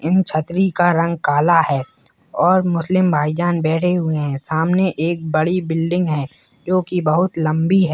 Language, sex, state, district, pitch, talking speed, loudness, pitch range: Hindi, male, Rajasthan, Nagaur, 165 Hz, 165 wpm, -18 LUFS, 155-180 Hz